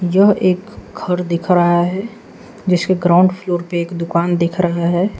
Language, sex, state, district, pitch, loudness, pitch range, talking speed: Hindi, male, Arunachal Pradesh, Lower Dibang Valley, 180 Hz, -16 LUFS, 175-185 Hz, 175 wpm